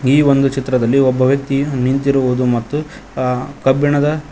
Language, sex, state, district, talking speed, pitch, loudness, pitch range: Kannada, male, Karnataka, Koppal, 140 wpm, 135 Hz, -15 LUFS, 130-140 Hz